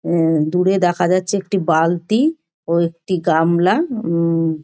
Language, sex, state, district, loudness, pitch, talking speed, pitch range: Bengali, male, West Bengal, Dakshin Dinajpur, -17 LUFS, 175 Hz, 130 wpm, 165-190 Hz